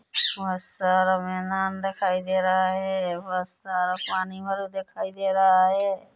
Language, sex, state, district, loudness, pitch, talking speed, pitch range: Hindi, female, Chhattisgarh, Bilaspur, -25 LUFS, 190 Hz, 145 wpm, 185-195 Hz